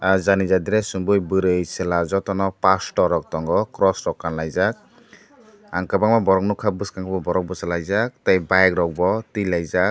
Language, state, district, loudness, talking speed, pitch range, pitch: Kokborok, Tripura, Dhalai, -21 LUFS, 165 wpm, 90-100 Hz, 95 Hz